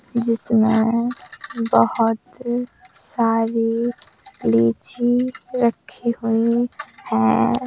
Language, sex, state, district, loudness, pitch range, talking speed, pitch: Hindi, female, Uttar Pradesh, Hamirpur, -20 LUFS, 225-240 Hz, 55 wpm, 230 Hz